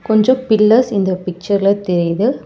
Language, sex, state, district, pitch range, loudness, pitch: Tamil, male, Tamil Nadu, Chennai, 185-230 Hz, -14 LUFS, 205 Hz